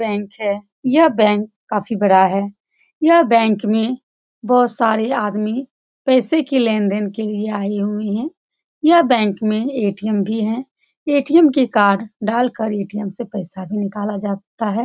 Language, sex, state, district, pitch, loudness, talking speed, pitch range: Hindi, female, Bihar, Saran, 215 Hz, -17 LUFS, 155 wpm, 205-250 Hz